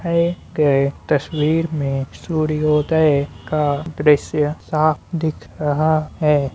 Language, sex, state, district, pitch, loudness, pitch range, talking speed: Hindi, male, Bihar, Muzaffarpur, 150 Hz, -19 LUFS, 145-155 Hz, 90 wpm